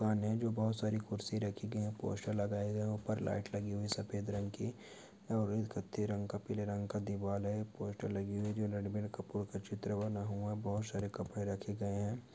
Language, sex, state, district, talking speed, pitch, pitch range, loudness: Hindi, male, Chhattisgarh, Jashpur, 230 wpm, 105 Hz, 100-105 Hz, -39 LUFS